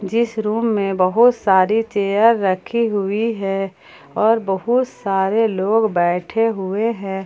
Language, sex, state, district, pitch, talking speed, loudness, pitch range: Hindi, female, Jharkhand, Palamu, 210 Hz, 130 wpm, -18 LUFS, 195-225 Hz